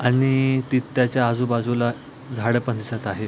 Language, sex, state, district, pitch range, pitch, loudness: Marathi, male, Maharashtra, Aurangabad, 120-130 Hz, 125 Hz, -22 LUFS